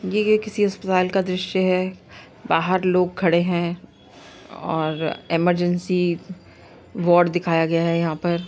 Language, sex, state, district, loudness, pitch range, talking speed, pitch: Hindi, female, Uttar Pradesh, Varanasi, -21 LUFS, 170-185 Hz, 135 wpm, 180 Hz